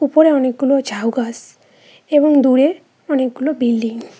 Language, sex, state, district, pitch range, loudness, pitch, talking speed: Bengali, female, West Bengal, Cooch Behar, 240-290 Hz, -16 LUFS, 265 Hz, 130 wpm